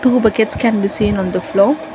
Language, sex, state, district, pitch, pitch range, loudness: English, female, Karnataka, Bangalore, 220 Hz, 200-240 Hz, -15 LUFS